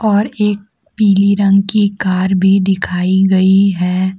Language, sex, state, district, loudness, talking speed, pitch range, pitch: Hindi, female, Jharkhand, Deoghar, -13 LUFS, 145 wpm, 190-205 Hz, 195 Hz